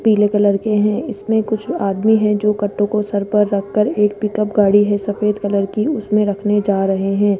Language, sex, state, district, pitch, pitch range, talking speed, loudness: Hindi, female, Rajasthan, Jaipur, 210 Hz, 205-210 Hz, 210 wpm, -17 LUFS